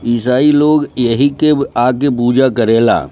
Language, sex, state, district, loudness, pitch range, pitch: Bhojpuri, male, Bihar, Gopalganj, -12 LUFS, 120-145 Hz, 125 Hz